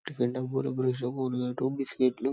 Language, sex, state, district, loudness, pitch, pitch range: Telugu, male, Telangana, Karimnagar, -30 LUFS, 130 Hz, 125-135 Hz